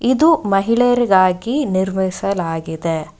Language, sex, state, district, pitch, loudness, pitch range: Kannada, female, Karnataka, Bellary, 190 Hz, -17 LUFS, 175-240 Hz